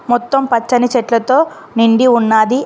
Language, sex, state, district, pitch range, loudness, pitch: Telugu, female, Telangana, Mahabubabad, 230-260 Hz, -13 LUFS, 245 Hz